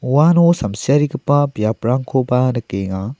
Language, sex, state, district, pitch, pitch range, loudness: Garo, male, Meghalaya, South Garo Hills, 125 Hz, 110-145 Hz, -16 LUFS